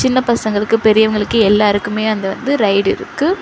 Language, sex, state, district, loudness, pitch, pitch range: Tamil, female, Tamil Nadu, Chennai, -14 LUFS, 220 Hz, 205-255 Hz